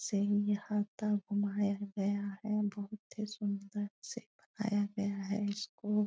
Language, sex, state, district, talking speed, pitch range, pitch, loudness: Hindi, female, Bihar, Jahanabad, 130 wpm, 200-210 Hz, 205 Hz, -36 LUFS